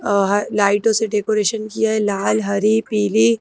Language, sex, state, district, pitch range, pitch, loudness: Hindi, female, Madhya Pradesh, Bhopal, 205-220 Hz, 215 Hz, -18 LUFS